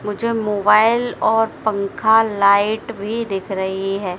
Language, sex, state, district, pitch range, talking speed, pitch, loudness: Hindi, female, Madhya Pradesh, Dhar, 200-225 Hz, 130 wpm, 210 Hz, -18 LUFS